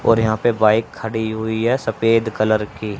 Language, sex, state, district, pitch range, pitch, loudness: Hindi, male, Haryana, Charkhi Dadri, 110-115 Hz, 110 Hz, -18 LUFS